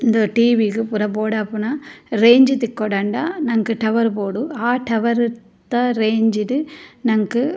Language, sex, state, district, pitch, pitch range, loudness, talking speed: Tulu, female, Karnataka, Dakshina Kannada, 230 Hz, 220-245 Hz, -18 LUFS, 135 wpm